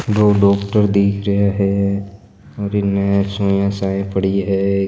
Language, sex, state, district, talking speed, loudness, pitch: Marwari, male, Rajasthan, Nagaur, 135 wpm, -17 LUFS, 100 Hz